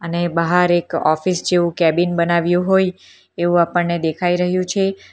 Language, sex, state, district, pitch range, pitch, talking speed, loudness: Gujarati, female, Gujarat, Valsad, 170-180 Hz, 175 Hz, 150 wpm, -17 LUFS